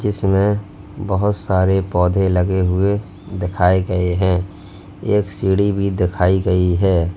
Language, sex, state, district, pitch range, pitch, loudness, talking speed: Hindi, male, Uttar Pradesh, Lalitpur, 90-100 Hz, 95 Hz, -18 LUFS, 125 wpm